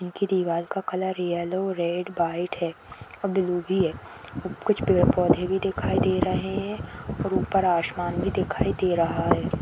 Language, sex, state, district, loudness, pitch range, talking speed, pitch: Hindi, female, Uttar Pradesh, Etah, -25 LUFS, 170-190 Hz, 175 wpm, 180 Hz